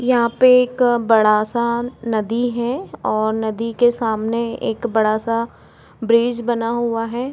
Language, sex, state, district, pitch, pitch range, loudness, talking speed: Hindi, female, Uttar Pradesh, Budaun, 235 Hz, 225-240 Hz, -18 LUFS, 145 wpm